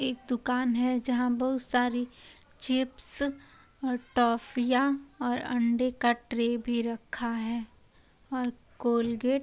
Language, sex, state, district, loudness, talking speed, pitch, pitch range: Hindi, female, Uttar Pradesh, Hamirpur, -30 LUFS, 100 wpm, 245 Hz, 240-255 Hz